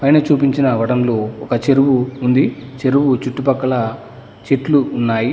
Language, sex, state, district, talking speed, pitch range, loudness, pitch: Telugu, male, Telangana, Mahabubabad, 110 wpm, 120-135 Hz, -16 LUFS, 130 Hz